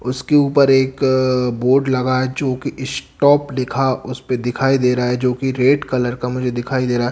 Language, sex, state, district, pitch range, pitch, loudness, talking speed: Hindi, male, Bihar, Katihar, 125-135 Hz, 130 Hz, -17 LUFS, 220 wpm